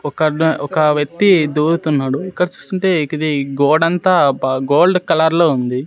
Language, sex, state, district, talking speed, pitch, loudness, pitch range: Telugu, male, Andhra Pradesh, Sri Satya Sai, 155 wpm, 155 Hz, -15 LUFS, 145-170 Hz